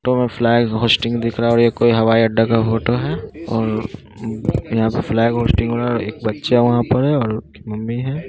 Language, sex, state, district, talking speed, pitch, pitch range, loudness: Hindi, male, Bihar, Muzaffarpur, 195 wpm, 115 Hz, 115-120 Hz, -17 LUFS